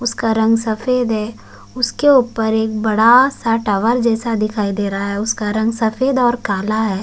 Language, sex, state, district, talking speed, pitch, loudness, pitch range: Hindi, male, Uttarakhand, Tehri Garhwal, 180 wpm, 225 Hz, -16 LUFS, 215-240 Hz